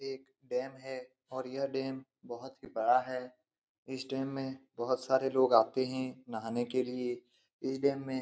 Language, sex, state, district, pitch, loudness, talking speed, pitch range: Hindi, male, Bihar, Saran, 130 Hz, -34 LUFS, 190 wpm, 125-135 Hz